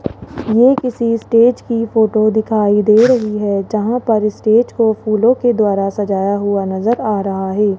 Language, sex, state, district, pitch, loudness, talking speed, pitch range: Hindi, male, Rajasthan, Jaipur, 215 Hz, -14 LUFS, 170 wpm, 205-230 Hz